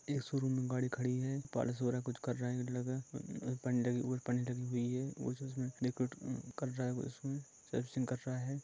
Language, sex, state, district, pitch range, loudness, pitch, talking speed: Hindi, male, Jharkhand, Sahebganj, 125-135 Hz, -39 LUFS, 125 Hz, 180 wpm